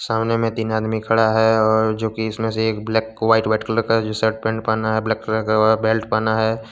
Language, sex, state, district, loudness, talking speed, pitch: Hindi, male, Jharkhand, Deoghar, -19 LUFS, 250 wpm, 110 Hz